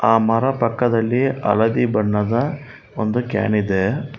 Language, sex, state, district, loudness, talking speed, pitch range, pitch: Kannada, male, Karnataka, Bangalore, -19 LUFS, 115 wpm, 110-125 Hz, 115 Hz